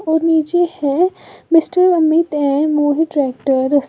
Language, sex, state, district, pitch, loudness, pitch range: Hindi, female, Uttar Pradesh, Lalitpur, 315 Hz, -15 LUFS, 285-335 Hz